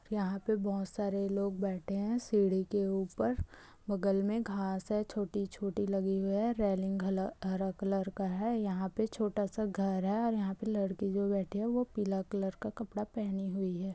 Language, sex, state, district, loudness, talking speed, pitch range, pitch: Hindi, female, Chhattisgarh, Raigarh, -34 LUFS, 190 wpm, 195-210 Hz, 200 Hz